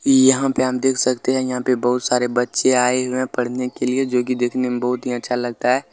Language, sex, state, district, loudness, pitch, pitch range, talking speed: Bhojpuri, male, Bihar, Saran, -19 LUFS, 125 Hz, 125-130 Hz, 270 wpm